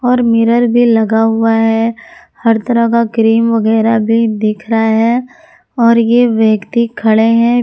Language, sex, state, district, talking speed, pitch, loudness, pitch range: Hindi, female, Jharkhand, Palamu, 155 wpm, 230 Hz, -11 LUFS, 225-235 Hz